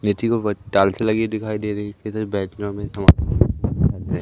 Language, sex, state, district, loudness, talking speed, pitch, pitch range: Hindi, male, Madhya Pradesh, Umaria, -21 LUFS, 140 wpm, 105 Hz, 100-110 Hz